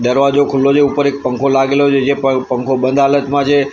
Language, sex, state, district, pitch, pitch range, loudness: Gujarati, male, Gujarat, Gandhinagar, 140 Hz, 135-140 Hz, -13 LUFS